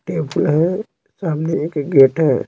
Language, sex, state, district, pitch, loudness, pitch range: Hindi, male, Bihar, Patna, 160 Hz, -17 LUFS, 145-165 Hz